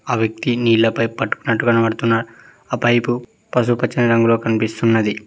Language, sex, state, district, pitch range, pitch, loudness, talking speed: Telugu, male, Telangana, Mahabubabad, 115-120 Hz, 115 Hz, -18 LUFS, 115 wpm